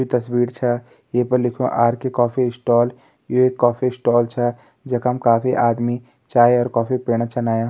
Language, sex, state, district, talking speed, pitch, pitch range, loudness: Hindi, male, Uttarakhand, Tehri Garhwal, 180 wpm, 120 Hz, 120-125 Hz, -19 LUFS